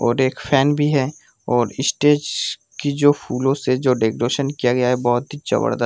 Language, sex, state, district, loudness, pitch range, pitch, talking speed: Hindi, male, Jharkhand, Sahebganj, -19 LUFS, 120-145 Hz, 130 Hz, 195 wpm